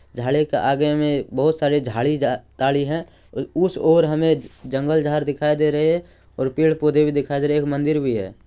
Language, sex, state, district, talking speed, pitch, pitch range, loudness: Hindi, male, Bihar, Purnia, 200 wpm, 150 Hz, 140-155 Hz, -20 LUFS